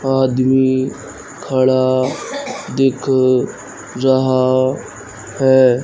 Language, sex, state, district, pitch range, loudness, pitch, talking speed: Hindi, male, Madhya Pradesh, Katni, 130-135 Hz, -16 LUFS, 130 Hz, 50 wpm